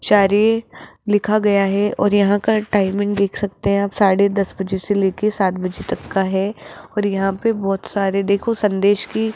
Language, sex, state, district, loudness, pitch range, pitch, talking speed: Hindi, female, Rajasthan, Jaipur, -18 LUFS, 195-210 Hz, 200 Hz, 200 wpm